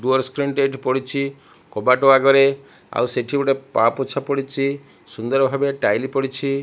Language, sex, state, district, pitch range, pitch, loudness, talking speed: Odia, male, Odisha, Malkangiri, 135-140 Hz, 135 Hz, -19 LUFS, 135 wpm